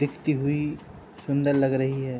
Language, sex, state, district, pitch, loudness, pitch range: Hindi, male, Uttar Pradesh, Hamirpur, 140 Hz, -25 LUFS, 135-145 Hz